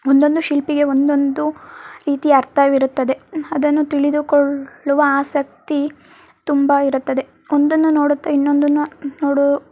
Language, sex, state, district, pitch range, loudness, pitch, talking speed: Kannada, female, Karnataka, Mysore, 280-295 Hz, -17 LUFS, 290 Hz, 95 wpm